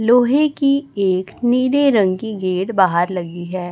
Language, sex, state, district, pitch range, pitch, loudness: Hindi, male, Chhattisgarh, Raipur, 185-255 Hz, 205 Hz, -17 LUFS